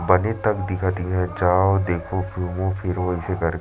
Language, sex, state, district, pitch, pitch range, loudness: Chhattisgarhi, male, Chhattisgarh, Sarguja, 90 Hz, 90-95 Hz, -22 LUFS